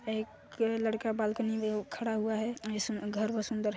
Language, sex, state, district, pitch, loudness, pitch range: Hindi, male, Chhattisgarh, Sarguja, 220 Hz, -33 LUFS, 215-225 Hz